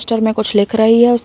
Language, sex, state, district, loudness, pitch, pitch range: Hindi, female, Uttar Pradesh, Deoria, -13 LUFS, 225 Hz, 220-235 Hz